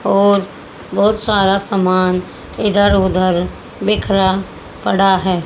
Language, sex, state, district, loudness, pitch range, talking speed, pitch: Hindi, female, Haryana, Jhajjar, -15 LUFS, 185-200 Hz, 100 wpm, 195 Hz